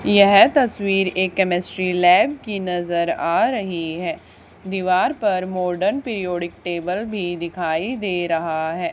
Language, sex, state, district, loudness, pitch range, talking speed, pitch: Hindi, female, Haryana, Charkhi Dadri, -20 LUFS, 175-205 Hz, 135 wpm, 185 Hz